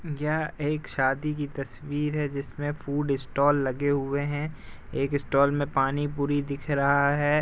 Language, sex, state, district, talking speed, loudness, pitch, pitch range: Hindi, male, Uttar Pradesh, Jalaun, 155 wpm, -27 LUFS, 145 Hz, 140-150 Hz